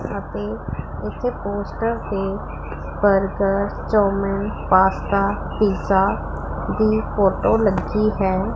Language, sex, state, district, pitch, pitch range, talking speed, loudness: Punjabi, female, Punjab, Pathankot, 200 Hz, 195-210 Hz, 85 wpm, -21 LUFS